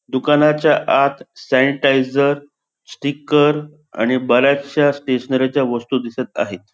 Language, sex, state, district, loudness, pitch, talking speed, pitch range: Marathi, male, Goa, North and South Goa, -17 LUFS, 140 Hz, 90 wpm, 130-150 Hz